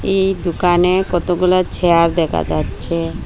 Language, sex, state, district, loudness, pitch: Bengali, female, Assam, Hailakandi, -16 LUFS, 175 Hz